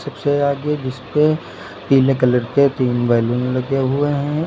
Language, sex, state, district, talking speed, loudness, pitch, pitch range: Hindi, male, Uttar Pradesh, Lucknow, 160 wpm, -18 LUFS, 135 Hz, 125-145 Hz